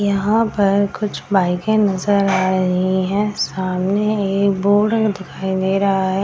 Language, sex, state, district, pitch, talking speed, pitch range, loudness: Hindi, female, Bihar, Madhepura, 195 Hz, 145 wpm, 190-205 Hz, -18 LUFS